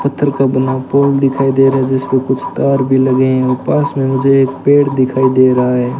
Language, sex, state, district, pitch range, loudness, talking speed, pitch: Hindi, male, Rajasthan, Bikaner, 130-140 Hz, -12 LUFS, 240 wpm, 135 Hz